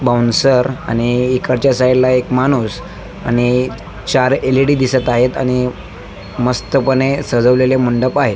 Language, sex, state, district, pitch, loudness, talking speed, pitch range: Marathi, male, Maharashtra, Nagpur, 125 Hz, -14 LUFS, 115 wpm, 120-130 Hz